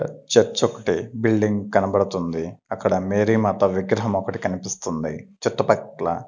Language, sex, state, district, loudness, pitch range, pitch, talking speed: Telugu, male, Andhra Pradesh, Sri Satya Sai, -22 LUFS, 95-105 Hz, 100 Hz, 105 wpm